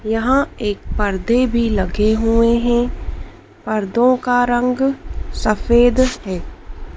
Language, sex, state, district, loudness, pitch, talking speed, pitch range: Hindi, female, Madhya Pradesh, Dhar, -17 LUFS, 230 Hz, 105 wpm, 210-245 Hz